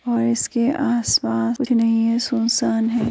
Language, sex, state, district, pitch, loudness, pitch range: Hindi, female, Uttar Pradesh, Jyotiba Phule Nagar, 235 Hz, -19 LUFS, 230-240 Hz